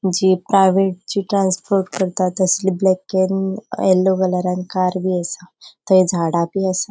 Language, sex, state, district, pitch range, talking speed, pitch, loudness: Konkani, female, Goa, North and South Goa, 185-195 Hz, 140 wpm, 190 Hz, -18 LUFS